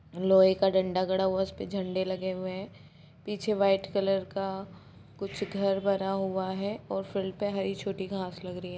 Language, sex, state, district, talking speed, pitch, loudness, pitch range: Hindi, female, Bihar, Sitamarhi, 200 wpm, 195 Hz, -30 LUFS, 185-195 Hz